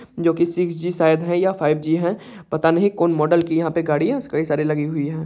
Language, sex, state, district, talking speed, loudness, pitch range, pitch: Hindi, male, Bihar, Saharsa, 275 wpm, -20 LUFS, 155-175 Hz, 165 Hz